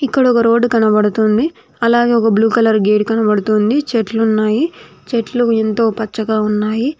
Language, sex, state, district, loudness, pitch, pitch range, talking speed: Telugu, female, Telangana, Mahabubabad, -14 LUFS, 225 Hz, 215-240 Hz, 135 wpm